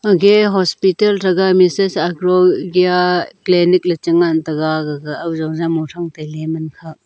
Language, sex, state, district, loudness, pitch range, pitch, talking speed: Wancho, female, Arunachal Pradesh, Longding, -15 LUFS, 160-185 Hz, 175 Hz, 145 wpm